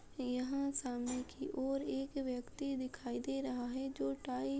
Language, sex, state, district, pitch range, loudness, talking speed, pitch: Hindi, female, Uttar Pradesh, Muzaffarnagar, 245-275 Hz, -40 LUFS, 170 wpm, 255 Hz